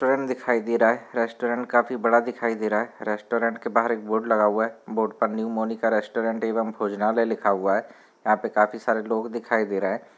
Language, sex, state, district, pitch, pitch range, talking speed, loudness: Hindi, male, Rajasthan, Nagaur, 115 Hz, 110-115 Hz, 225 wpm, -24 LUFS